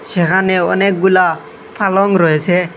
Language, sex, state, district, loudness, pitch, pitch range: Bengali, male, Assam, Hailakandi, -13 LUFS, 185 Hz, 175-195 Hz